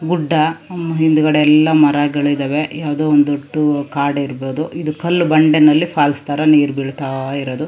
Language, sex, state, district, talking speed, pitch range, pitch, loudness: Kannada, female, Karnataka, Shimoga, 135 wpm, 145-155 Hz, 150 Hz, -15 LUFS